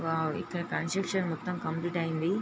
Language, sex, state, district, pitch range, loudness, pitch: Telugu, female, Andhra Pradesh, Srikakulam, 165-180 Hz, -32 LUFS, 170 Hz